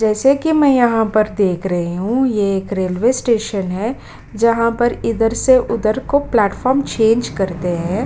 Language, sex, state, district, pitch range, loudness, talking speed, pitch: Hindi, female, Bihar, Kishanganj, 195-245 Hz, -16 LUFS, 170 wpm, 225 Hz